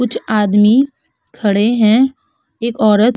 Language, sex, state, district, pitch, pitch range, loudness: Hindi, female, Uttar Pradesh, Hamirpur, 225 Hz, 210-250 Hz, -14 LUFS